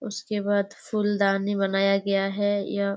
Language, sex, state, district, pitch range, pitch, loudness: Hindi, female, Chhattisgarh, Bastar, 195-205 Hz, 200 Hz, -25 LUFS